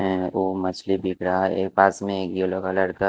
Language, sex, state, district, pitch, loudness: Hindi, male, Himachal Pradesh, Shimla, 95 Hz, -23 LUFS